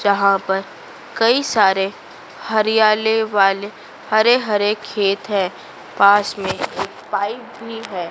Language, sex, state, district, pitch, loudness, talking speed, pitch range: Hindi, female, Madhya Pradesh, Dhar, 205 Hz, -18 LUFS, 110 wpm, 195-220 Hz